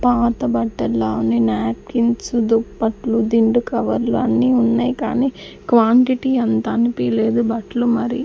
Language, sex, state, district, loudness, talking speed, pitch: Telugu, female, Andhra Pradesh, Sri Satya Sai, -18 LUFS, 110 wpm, 230 Hz